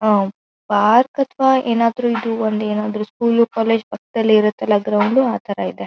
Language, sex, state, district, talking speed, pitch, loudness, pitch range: Kannada, female, Karnataka, Dharwad, 135 wpm, 225 Hz, -17 LUFS, 210-235 Hz